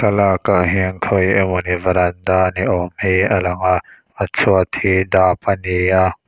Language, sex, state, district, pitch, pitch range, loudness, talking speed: Mizo, male, Mizoram, Aizawl, 95 Hz, 90-95 Hz, -16 LUFS, 180 wpm